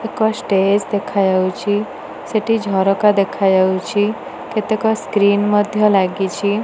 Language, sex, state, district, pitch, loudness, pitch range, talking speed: Odia, female, Odisha, Nuapada, 205 Hz, -16 LUFS, 195-215 Hz, 90 wpm